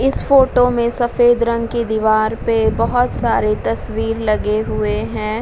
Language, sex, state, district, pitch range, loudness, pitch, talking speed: Hindi, female, Bihar, Vaishali, 215-240 Hz, -16 LUFS, 225 Hz, 155 wpm